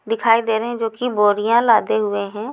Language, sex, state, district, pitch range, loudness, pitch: Hindi, female, Chhattisgarh, Raipur, 210-235 Hz, -18 LUFS, 225 Hz